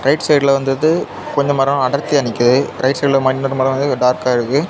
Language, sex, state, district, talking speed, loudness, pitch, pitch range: Tamil, male, Tamil Nadu, Kanyakumari, 180 wpm, -15 LUFS, 135 Hz, 130-140 Hz